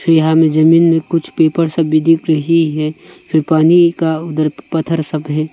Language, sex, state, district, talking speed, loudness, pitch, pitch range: Hindi, male, Arunachal Pradesh, Longding, 205 wpm, -13 LUFS, 160 Hz, 155-165 Hz